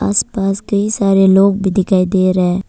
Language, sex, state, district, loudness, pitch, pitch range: Hindi, female, Arunachal Pradesh, Papum Pare, -13 LUFS, 195 Hz, 190-200 Hz